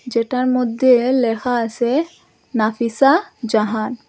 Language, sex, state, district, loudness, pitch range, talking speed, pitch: Bengali, female, Assam, Hailakandi, -18 LUFS, 230-260 Hz, 105 wpm, 245 Hz